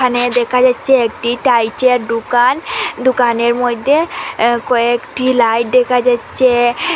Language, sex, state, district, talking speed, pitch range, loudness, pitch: Bengali, female, Assam, Hailakandi, 110 wpm, 235-255 Hz, -13 LUFS, 245 Hz